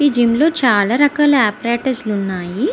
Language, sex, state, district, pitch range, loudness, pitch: Telugu, female, Andhra Pradesh, Visakhapatnam, 210-285 Hz, -15 LUFS, 240 Hz